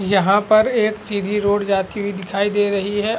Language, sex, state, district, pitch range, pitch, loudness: Hindi, male, Bihar, Araria, 200-210 Hz, 205 Hz, -18 LUFS